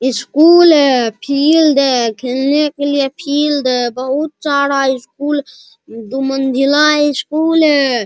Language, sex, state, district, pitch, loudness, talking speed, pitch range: Hindi, male, Bihar, Araria, 280 Hz, -13 LUFS, 135 wpm, 260-295 Hz